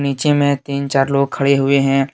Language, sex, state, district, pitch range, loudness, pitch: Hindi, male, Jharkhand, Deoghar, 135-140 Hz, -16 LUFS, 140 Hz